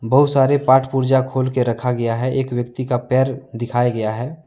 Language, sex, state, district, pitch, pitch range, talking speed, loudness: Hindi, male, Jharkhand, Deoghar, 130 Hz, 120-135 Hz, 215 wpm, -18 LUFS